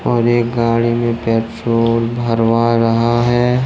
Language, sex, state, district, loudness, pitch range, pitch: Hindi, male, Jharkhand, Deoghar, -15 LUFS, 115-120 Hz, 115 Hz